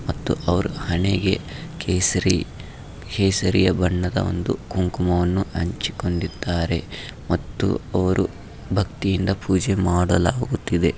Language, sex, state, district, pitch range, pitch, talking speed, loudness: Kannada, male, Karnataka, Raichur, 85-95 Hz, 90 Hz, 75 wpm, -22 LUFS